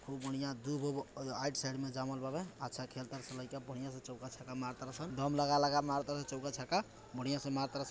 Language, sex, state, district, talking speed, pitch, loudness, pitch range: Maithili, male, Bihar, Samastipur, 275 wpm, 135 Hz, -39 LUFS, 130-140 Hz